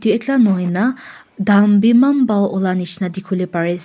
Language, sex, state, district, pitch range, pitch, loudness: Nagamese, female, Nagaland, Kohima, 185-230 Hz, 200 Hz, -16 LUFS